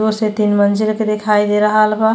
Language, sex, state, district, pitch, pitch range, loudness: Bhojpuri, female, Uttar Pradesh, Deoria, 215 Hz, 210-215 Hz, -15 LUFS